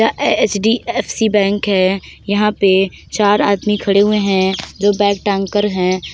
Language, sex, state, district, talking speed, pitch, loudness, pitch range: Hindi, female, Uttar Pradesh, Deoria, 165 wpm, 205 Hz, -15 LUFS, 195-210 Hz